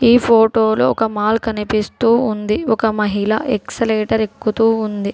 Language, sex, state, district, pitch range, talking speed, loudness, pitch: Telugu, female, Telangana, Hyderabad, 215-225 Hz, 130 wpm, -16 LUFS, 220 Hz